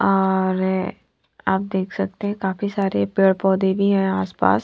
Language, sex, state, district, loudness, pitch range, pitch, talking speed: Hindi, female, Punjab, Fazilka, -21 LUFS, 185-195 Hz, 190 Hz, 170 wpm